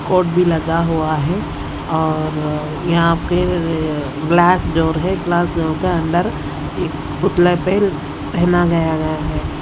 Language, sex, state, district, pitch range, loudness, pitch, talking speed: Hindi, female, Haryana, Rohtak, 155-175 Hz, -17 LUFS, 165 Hz, 135 wpm